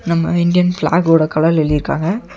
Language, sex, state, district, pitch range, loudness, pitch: Tamil, male, Tamil Nadu, Nilgiris, 160-175 Hz, -15 LUFS, 165 Hz